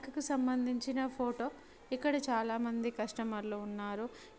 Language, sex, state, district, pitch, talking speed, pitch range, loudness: Telugu, male, Telangana, Nalgonda, 245 Hz, 110 wpm, 225-265 Hz, -36 LUFS